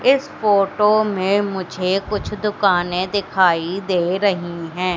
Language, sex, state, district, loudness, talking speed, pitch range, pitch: Hindi, female, Madhya Pradesh, Katni, -19 LUFS, 120 wpm, 180-205 Hz, 195 Hz